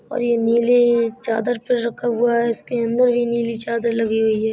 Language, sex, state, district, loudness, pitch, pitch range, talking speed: Bundeli, female, Uttar Pradesh, Budaun, -19 LUFS, 235 Hz, 230-240 Hz, 240 wpm